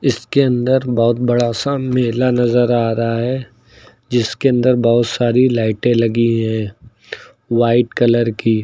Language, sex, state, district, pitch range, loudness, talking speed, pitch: Hindi, male, Uttar Pradesh, Lucknow, 115-125 Hz, -16 LUFS, 140 wpm, 120 Hz